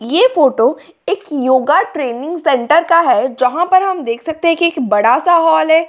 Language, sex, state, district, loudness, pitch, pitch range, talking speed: Hindi, female, Delhi, New Delhi, -13 LUFS, 320 Hz, 260-340 Hz, 195 wpm